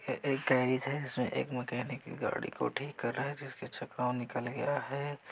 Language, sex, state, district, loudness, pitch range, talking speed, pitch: Hindi, male, Chhattisgarh, Raigarh, -35 LUFS, 125-140 Hz, 215 wpm, 130 Hz